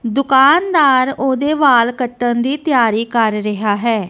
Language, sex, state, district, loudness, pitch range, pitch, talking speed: Punjabi, female, Punjab, Kapurthala, -14 LUFS, 230-275 Hz, 245 Hz, 130 wpm